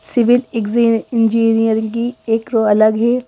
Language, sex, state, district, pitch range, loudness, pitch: Hindi, female, Madhya Pradesh, Bhopal, 225-235 Hz, -15 LUFS, 230 Hz